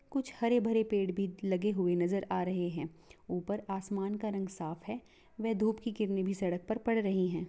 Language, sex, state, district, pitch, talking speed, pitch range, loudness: Hindi, female, Bihar, Purnia, 195 Hz, 215 wpm, 185-220 Hz, -34 LUFS